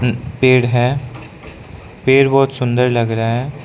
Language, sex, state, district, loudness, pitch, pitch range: Hindi, male, Arunachal Pradesh, Lower Dibang Valley, -15 LUFS, 125 Hz, 120-135 Hz